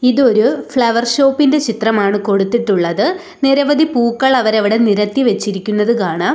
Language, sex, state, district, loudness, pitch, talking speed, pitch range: Malayalam, female, Kerala, Kollam, -14 LUFS, 235 Hz, 115 wpm, 210-270 Hz